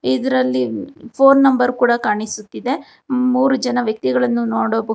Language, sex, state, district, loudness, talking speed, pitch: Kannada, female, Karnataka, Bangalore, -17 LUFS, 110 wpm, 220 Hz